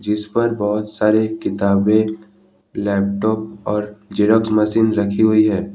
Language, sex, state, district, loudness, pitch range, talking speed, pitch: Hindi, male, Jharkhand, Ranchi, -18 LUFS, 105-110 Hz, 125 wpm, 105 Hz